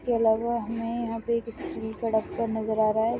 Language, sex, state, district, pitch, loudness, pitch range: Hindi, female, Rajasthan, Churu, 230 Hz, -28 LUFS, 220-235 Hz